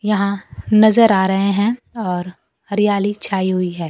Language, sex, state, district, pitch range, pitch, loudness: Hindi, female, Bihar, Kaimur, 185-210 Hz, 200 Hz, -17 LUFS